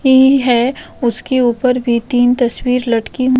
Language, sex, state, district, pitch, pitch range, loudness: Hindi, female, Uttar Pradesh, Jalaun, 250 Hz, 240-255 Hz, -14 LUFS